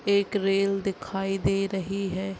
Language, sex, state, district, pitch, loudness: Hindi, female, Chhattisgarh, Balrampur, 195 Hz, -27 LUFS